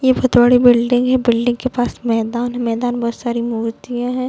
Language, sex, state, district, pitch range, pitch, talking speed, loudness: Hindi, female, Bihar, Darbhanga, 235-250 Hz, 245 Hz, 210 wpm, -16 LUFS